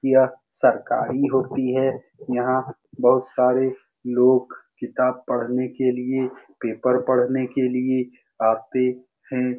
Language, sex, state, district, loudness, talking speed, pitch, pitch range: Hindi, male, Bihar, Saran, -22 LUFS, 115 wpm, 130 Hz, 125-130 Hz